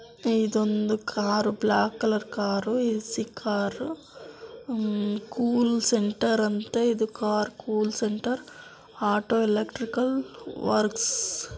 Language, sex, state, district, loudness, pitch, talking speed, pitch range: Kannada, female, Karnataka, Dakshina Kannada, -26 LUFS, 220 Hz, 95 wpm, 210-240 Hz